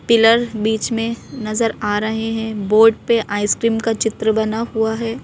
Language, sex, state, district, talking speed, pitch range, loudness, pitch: Hindi, female, Madhya Pradesh, Bhopal, 170 wpm, 220-230 Hz, -18 LUFS, 225 Hz